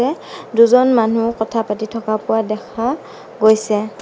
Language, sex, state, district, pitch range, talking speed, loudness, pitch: Assamese, female, Assam, Sonitpur, 215-235 Hz, 120 wpm, -16 LUFS, 225 Hz